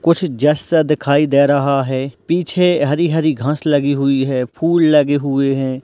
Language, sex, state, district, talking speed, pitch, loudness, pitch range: Hindi, male, Bihar, Purnia, 175 wpm, 145 Hz, -15 LUFS, 140-160 Hz